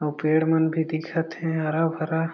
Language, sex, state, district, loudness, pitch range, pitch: Chhattisgarhi, male, Chhattisgarh, Jashpur, -24 LUFS, 155-165 Hz, 160 Hz